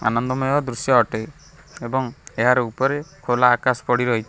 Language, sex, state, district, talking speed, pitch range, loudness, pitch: Odia, male, Odisha, Khordha, 125 wpm, 120-135 Hz, -20 LUFS, 125 Hz